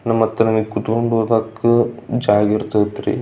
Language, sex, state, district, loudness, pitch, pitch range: Kannada, male, Karnataka, Belgaum, -17 LUFS, 110 Hz, 105-115 Hz